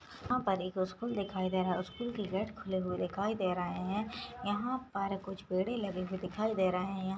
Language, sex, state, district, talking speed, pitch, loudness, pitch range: Hindi, female, Goa, North and South Goa, 225 wpm, 195 Hz, -36 LUFS, 185-215 Hz